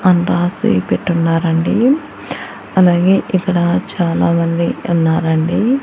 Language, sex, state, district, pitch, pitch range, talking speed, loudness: Telugu, female, Andhra Pradesh, Annamaya, 175 Hz, 170-190 Hz, 70 wpm, -15 LUFS